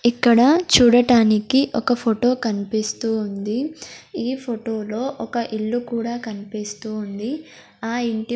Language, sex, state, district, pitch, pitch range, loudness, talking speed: Telugu, female, Andhra Pradesh, Sri Satya Sai, 230 Hz, 220-245 Hz, -20 LUFS, 115 wpm